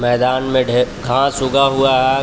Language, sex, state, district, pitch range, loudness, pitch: Hindi, male, Jharkhand, Palamu, 125-135 Hz, -15 LUFS, 130 Hz